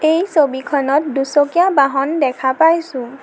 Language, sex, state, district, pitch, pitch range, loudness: Assamese, female, Assam, Sonitpur, 285 Hz, 270-320 Hz, -15 LUFS